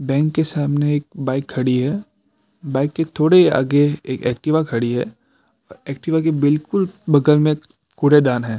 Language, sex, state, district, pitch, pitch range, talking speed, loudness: Hindi, male, Uttarakhand, Tehri Garhwal, 145 Hz, 130-155 Hz, 170 wpm, -18 LUFS